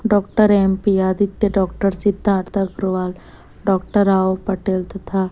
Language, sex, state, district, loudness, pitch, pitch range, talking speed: Hindi, female, Chhattisgarh, Raipur, -18 LUFS, 195 Hz, 190-200 Hz, 115 wpm